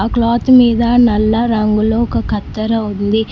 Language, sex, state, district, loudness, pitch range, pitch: Telugu, female, Telangana, Mahabubabad, -13 LUFS, 215-235 Hz, 225 Hz